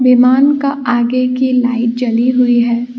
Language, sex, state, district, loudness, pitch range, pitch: Hindi, female, Assam, Kamrup Metropolitan, -13 LUFS, 240-255 Hz, 250 Hz